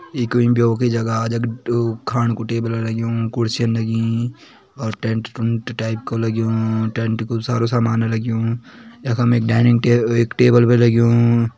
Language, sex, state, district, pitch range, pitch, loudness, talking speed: Kumaoni, male, Uttarakhand, Tehri Garhwal, 115-120 Hz, 115 Hz, -18 LUFS, 155 wpm